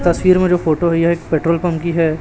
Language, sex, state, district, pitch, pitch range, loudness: Hindi, male, Chhattisgarh, Raipur, 170 Hz, 165-175 Hz, -15 LUFS